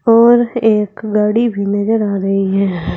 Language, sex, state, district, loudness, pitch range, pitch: Hindi, female, Uttar Pradesh, Saharanpur, -14 LUFS, 200-230 Hz, 210 Hz